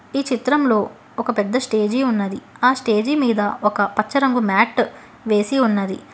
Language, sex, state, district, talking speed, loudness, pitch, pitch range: Telugu, female, Telangana, Hyderabad, 145 wpm, -19 LUFS, 230 Hz, 210-255 Hz